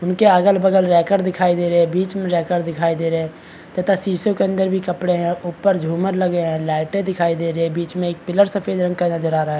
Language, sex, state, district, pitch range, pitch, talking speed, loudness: Hindi, male, Chhattisgarh, Bastar, 170-190 Hz, 175 Hz, 275 wpm, -18 LUFS